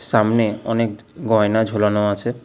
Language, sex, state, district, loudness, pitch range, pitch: Bengali, male, West Bengal, Alipurduar, -19 LUFS, 105-115 Hz, 110 Hz